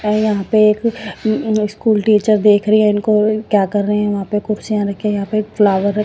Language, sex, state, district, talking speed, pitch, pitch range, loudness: Hindi, female, Punjab, Pathankot, 250 wpm, 210 Hz, 205-215 Hz, -15 LUFS